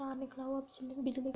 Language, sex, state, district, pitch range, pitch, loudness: Hindi, female, Uttar Pradesh, Budaun, 260-270 Hz, 265 Hz, -41 LUFS